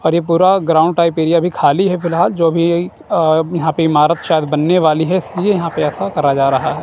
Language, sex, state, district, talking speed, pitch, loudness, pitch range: Hindi, male, Punjab, Kapurthala, 235 wpm, 165 Hz, -14 LUFS, 160-175 Hz